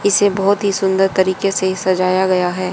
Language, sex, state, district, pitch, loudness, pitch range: Hindi, female, Haryana, Jhajjar, 190 Hz, -16 LUFS, 185-195 Hz